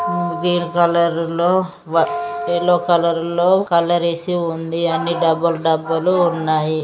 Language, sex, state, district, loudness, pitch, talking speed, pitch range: Telugu, male, Andhra Pradesh, Guntur, -18 LUFS, 170 Hz, 125 wpm, 165-175 Hz